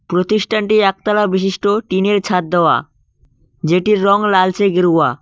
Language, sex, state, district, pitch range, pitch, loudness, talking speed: Bengali, male, West Bengal, Cooch Behar, 180-210 Hz, 195 Hz, -15 LUFS, 115 wpm